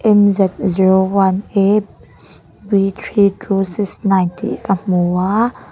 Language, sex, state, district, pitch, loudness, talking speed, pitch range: Mizo, female, Mizoram, Aizawl, 195 Hz, -15 LUFS, 145 wpm, 190-205 Hz